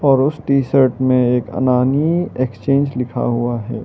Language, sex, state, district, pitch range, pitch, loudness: Hindi, male, Arunachal Pradesh, Lower Dibang Valley, 125-140 Hz, 130 Hz, -17 LUFS